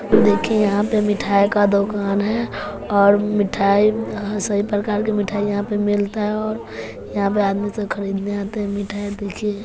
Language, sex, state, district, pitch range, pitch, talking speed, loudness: Hindi, female, Bihar, West Champaran, 200-210 Hz, 205 Hz, 170 wpm, -20 LUFS